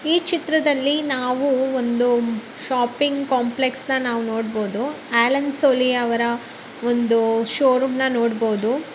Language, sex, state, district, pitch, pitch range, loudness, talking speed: Kannada, male, Karnataka, Bellary, 255 Hz, 235-275 Hz, -20 LUFS, 100 wpm